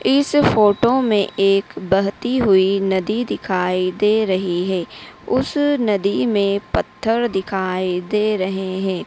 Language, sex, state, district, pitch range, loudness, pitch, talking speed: Hindi, female, Madhya Pradesh, Dhar, 190-220 Hz, -18 LUFS, 200 Hz, 125 wpm